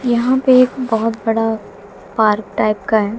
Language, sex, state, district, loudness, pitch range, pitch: Hindi, female, Haryana, Jhajjar, -16 LUFS, 215-250 Hz, 225 Hz